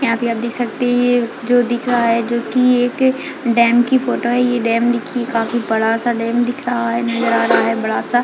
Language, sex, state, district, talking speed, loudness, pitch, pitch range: Hindi, female, Chhattisgarh, Raigarh, 240 wpm, -16 LUFS, 240 Hz, 230-245 Hz